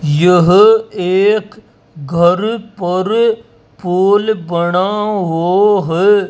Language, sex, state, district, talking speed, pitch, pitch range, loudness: Hindi, male, Rajasthan, Jaipur, 75 wpm, 195 Hz, 175-210 Hz, -13 LUFS